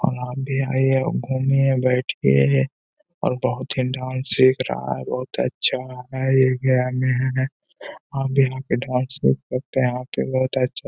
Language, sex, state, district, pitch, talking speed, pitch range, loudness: Hindi, male, Bihar, Gaya, 130 Hz, 105 wpm, 125-130 Hz, -21 LUFS